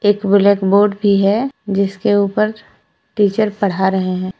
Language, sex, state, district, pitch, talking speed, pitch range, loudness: Hindi, female, Jharkhand, Deoghar, 200 Hz, 135 wpm, 195-210 Hz, -15 LUFS